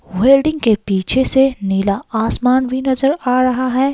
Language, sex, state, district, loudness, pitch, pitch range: Hindi, female, Himachal Pradesh, Shimla, -15 LUFS, 255 Hz, 220-270 Hz